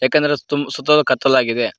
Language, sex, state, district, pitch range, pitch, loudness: Kannada, male, Karnataka, Koppal, 130-145 Hz, 140 Hz, -16 LUFS